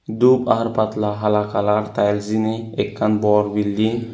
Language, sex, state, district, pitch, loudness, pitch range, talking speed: Chakma, male, Tripura, Unakoti, 105 Hz, -19 LUFS, 105-110 Hz, 145 wpm